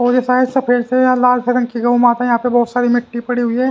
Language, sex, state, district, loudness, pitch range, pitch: Hindi, male, Haryana, Jhajjar, -15 LUFS, 240-250 Hz, 245 Hz